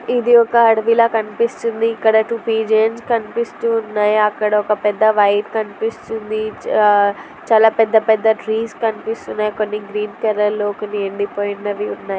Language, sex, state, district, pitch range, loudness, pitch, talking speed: Telugu, female, Andhra Pradesh, Anantapur, 210-225 Hz, -17 LUFS, 220 Hz, 130 wpm